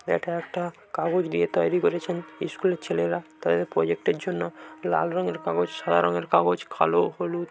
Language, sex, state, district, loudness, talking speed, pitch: Bengali, male, West Bengal, Jhargram, -26 LUFS, 150 wpm, 155 Hz